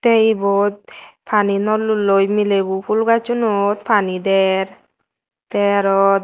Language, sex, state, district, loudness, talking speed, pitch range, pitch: Chakma, female, Tripura, West Tripura, -17 LUFS, 125 wpm, 195-215 Hz, 200 Hz